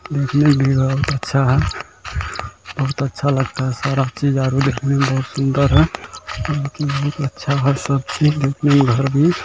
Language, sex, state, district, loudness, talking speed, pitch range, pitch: Hindi, male, Bihar, Kishanganj, -18 LUFS, 180 wpm, 135-140 Hz, 140 Hz